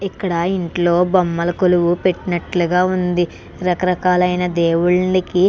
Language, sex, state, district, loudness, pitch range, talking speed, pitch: Telugu, female, Andhra Pradesh, Krishna, -17 LUFS, 175-185 Hz, 100 wpm, 180 Hz